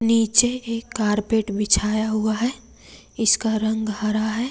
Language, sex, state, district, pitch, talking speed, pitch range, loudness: Hindi, female, Jharkhand, Deoghar, 220 Hz, 135 wpm, 215-230 Hz, -21 LUFS